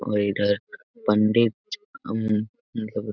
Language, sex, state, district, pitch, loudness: Hindi, male, Jharkhand, Jamtara, 110 Hz, -24 LUFS